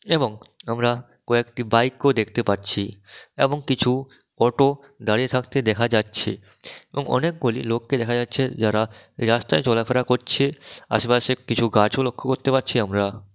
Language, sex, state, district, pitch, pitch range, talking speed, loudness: Bengali, male, West Bengal, Dakshin Dinajpur, 120 Hz, 110-130 Hz, 135 wpm, -22 LUFS